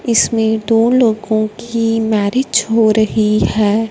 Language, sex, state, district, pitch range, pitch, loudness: Hindi, female, Punjab, Fazilka, 215-230 Hz, 220 Hz, -14 LUFS